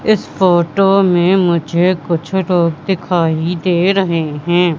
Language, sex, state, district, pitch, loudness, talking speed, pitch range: Hindi, female, Madhya Pradesh, Katni, 175 Hz, -14 LUFS, 125 wpm, 170-190 Hz